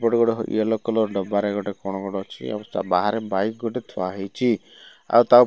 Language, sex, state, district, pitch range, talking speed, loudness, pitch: Odia, male, Odisha, Malkangiri, 100-115 Hz, 220 wpm, -23 LUFS, 110 Hz